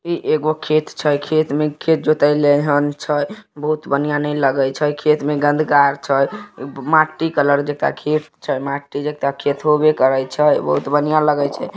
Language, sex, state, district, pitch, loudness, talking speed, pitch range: Maithili, male, Bihar, Samastipur, 150 Hz, -17 LUFS, 190 wpm, 145-155 Hz